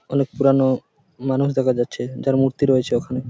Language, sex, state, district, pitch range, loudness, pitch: Bengali, male, West Bengal, Paschim Medinipur, 130-140 Hz, -20 LUFS, 135 Hz